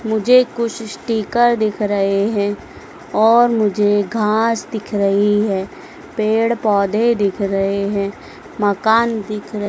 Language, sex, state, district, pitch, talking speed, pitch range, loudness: Hindi, female, Madhya Pradesh, Dhar, 215 Hz, 125 wpm, 205-230 Hz, -17 LUFS